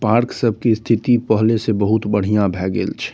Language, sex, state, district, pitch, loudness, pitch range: Maithili, male, Bihar, Saharsa, 110 Hz, -17 LUFS, 105-115 Hz